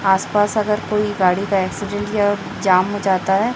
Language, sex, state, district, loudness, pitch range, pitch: Hindi, female, Chhattisgarh, Raipur, -18 LUFS, 190-205 Hz, 200 Hz